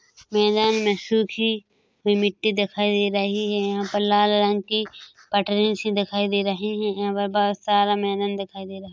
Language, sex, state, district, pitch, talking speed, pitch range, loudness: Hindi, female, Chhattisgarh, Korba, 205 Hz, 195 wpm, 200-210 Hz, -22 LUFS